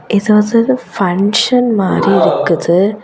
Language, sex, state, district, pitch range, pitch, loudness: Tamil, female, Tamil Nadu, Kanyakumari, 195-230 Hz, 210 Hz, -12 LUFS